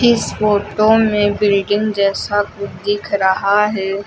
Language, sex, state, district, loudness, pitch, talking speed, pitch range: Hindi, female, Uttar Pradesh, Lucknow, -16 LUFS, 205 Hz, 130 wpm, 200-210 Hz